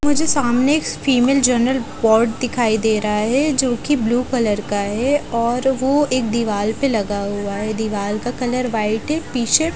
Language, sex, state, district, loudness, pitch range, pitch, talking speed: Hindi, female, Haryana, Jhajjar, -18 LUFS, 220-265 Hz, 240 Hz, 190 wpm